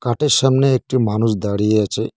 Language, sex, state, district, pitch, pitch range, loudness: Bengali, male, West Bengal, Cooch Behar, 115 Hz, 105-130 Hz, -17 LUFS